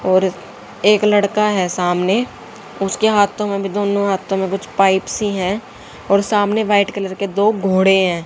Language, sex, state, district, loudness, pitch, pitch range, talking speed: Hindi, female, Haryana, Jhajjar, -17 LUFS, 200 Hz, 190-205 Hz, 175 wpm